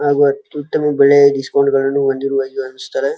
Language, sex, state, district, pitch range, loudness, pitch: Kannada, male, Karnataka, Dharwad, 135-145 Hz, -15 LUFS, 140 Hz